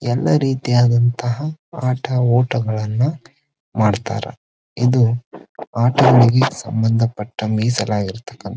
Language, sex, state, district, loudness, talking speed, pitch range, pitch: Kannada, male, Karnataka, Dharwad, -18 LUFS, 70 wpm, 115-130 Hz, 120 Hz